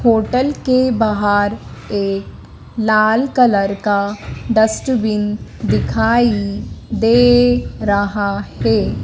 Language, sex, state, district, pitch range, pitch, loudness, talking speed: Hindi, female, Madhya Pradesh, Dhar, 205-240 Hz, 215 Hz, -16 LUFS, 80 wpm